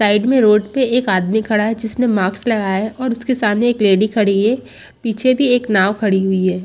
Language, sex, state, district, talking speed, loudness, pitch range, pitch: Hindi, female, Chhattisgarh, Rajnandgaon, 235 wpm, -16 LUFS, 205-240 Hz, 215 Hz